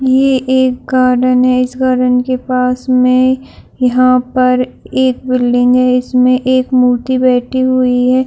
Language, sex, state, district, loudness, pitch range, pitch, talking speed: Hindi, female, Chhattisgarh, Bilaspur, -12 LUFS, 250-255 Hz, 255 Hz, 145 wpm